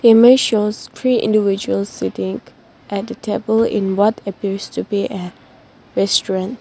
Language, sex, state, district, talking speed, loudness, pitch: English, female, Nagaland, Dimapur, 135 wpm, -18 LUFS, 195 Hz